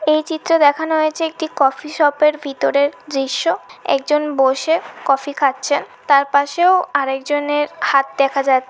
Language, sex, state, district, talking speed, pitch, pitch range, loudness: Bengali, female, West Bengal, Malda, 150 wpm, 290 Hz, 275-315 Hz, -17 LUFS